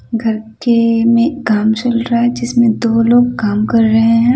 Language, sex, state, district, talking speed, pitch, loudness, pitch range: Hindi, female, Odisha, Nuapada, 190 wpm, 230 Hz, -13 LUFS, 225-240 Hz